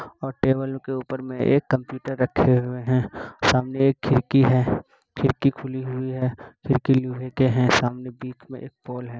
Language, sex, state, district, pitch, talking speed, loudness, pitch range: Hindi, male, Bihar, Kishanganj, 130 Hz, 180 wpm, -23 LUFS, 125-135 Hz